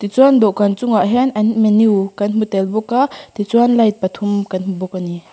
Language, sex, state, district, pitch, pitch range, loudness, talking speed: Mizo, female, Mizoram, Aizawl, 210 Hz, 195-230 Hz, -15 LUFS, 225 wpm